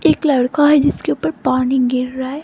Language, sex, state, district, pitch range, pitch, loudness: Hindi, female, Rajasthan, Jaipur, 250-290 Hz, 260 Hz, -16 LUFS